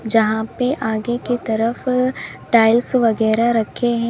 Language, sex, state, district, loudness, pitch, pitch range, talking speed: Hindi, female, Uttar Pradesh, Lalitpur, -18 LUFS, 235 Hz, 220-245 Hz, 130 wpm